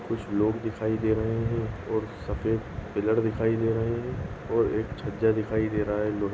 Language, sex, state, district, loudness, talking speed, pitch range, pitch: Hindi, female, Goa, North and South Goa, -28 LUFS, 200 wpm, 105-115 Hz, 110 Hz